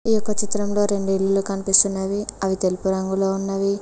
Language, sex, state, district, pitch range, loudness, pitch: Telugu, female, Telangana, Mahabubabad, 195-205 Hz, -21 LUFS, 195 Hz